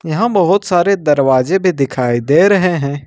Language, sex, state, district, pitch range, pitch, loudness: Hindi, male, Jharkhand, Ranchi, 140-190 Hz, 175 Hz, -13 LUFS